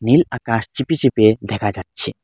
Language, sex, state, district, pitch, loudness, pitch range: Bengali, male, Assam, Hailakandi, 115 Hz, -18 LUFS, 110-130 Hz